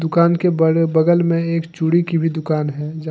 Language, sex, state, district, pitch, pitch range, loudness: Hindi, male, Jharkhand, Deoghar, 165 Hz, 160-170 Hz, -17 LUFS